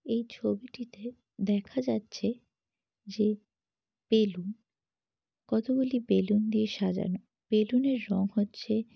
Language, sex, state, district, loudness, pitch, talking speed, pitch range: Bengali, female, West Bengal, Jalpaiguri, -30 LUFS, 220 Hz, 95 wpm, 205-235 Hz